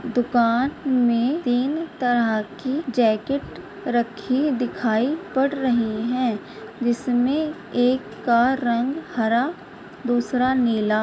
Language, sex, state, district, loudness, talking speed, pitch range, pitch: Hindi, female, Bihar, Purnia, -22 LUFS, 105 wpm, 235-265 Hz, 245 Hz